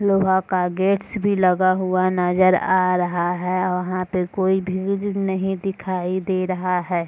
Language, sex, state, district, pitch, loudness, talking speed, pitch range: Hindi, female, Bihar, Purnia, 185 Hz, -21 LUFS, 160 wpm, 180-190 Hz